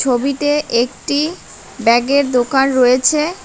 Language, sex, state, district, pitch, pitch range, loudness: Bengali, female, West Bengal, Cooch Behar, 270 Hz, 250-290 Hz, -15 LUFS